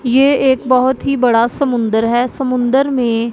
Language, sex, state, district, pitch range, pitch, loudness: Hindi, female, Punjab, Pathankot, 235-265 Hz, 255 Hz, -14 LUFS